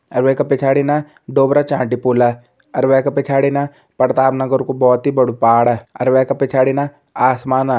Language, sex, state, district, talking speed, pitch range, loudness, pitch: Hindi, male, Uttarakhand, Tehri Garhwal, 185 wpm, 125-140 Hz, -15 LUFS, 130 Hz